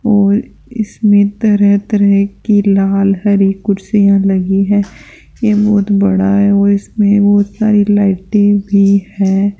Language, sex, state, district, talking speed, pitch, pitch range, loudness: Hindi, female, Rajasthan, Jaipur, 130 wpm, 200 Hz, 195-205 Hz, -12 LUFS